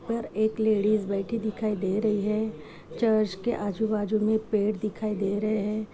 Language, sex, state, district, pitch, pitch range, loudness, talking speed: Hindi, female, Chhattisgarh, Jashpur, 215 Hz, 205-220 Hz, -27 LUFS, 180 wpm